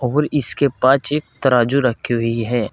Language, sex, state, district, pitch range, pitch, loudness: Hindi, male, Uttar Pradesh, Saharanpur, 120-140 Hz, 130 Hz, -17 LUFS